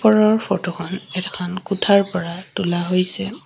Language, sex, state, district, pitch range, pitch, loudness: Assamese, female, Assam, Sonitpur, 180-200 Hz, 185 Hz, -20 LUFS